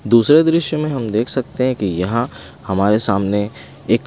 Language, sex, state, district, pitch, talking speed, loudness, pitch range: Hindi, male, Punjab, Pathankot, 115 Hz, 175 wpm, -17 LUFS, 100-130 Hz